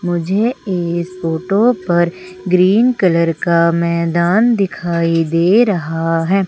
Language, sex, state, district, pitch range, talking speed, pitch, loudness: Hindi, female, Madhya Pradesh, Umaria, 170-195 Hz, 110 wpm, 175 Hz, -15 LUFS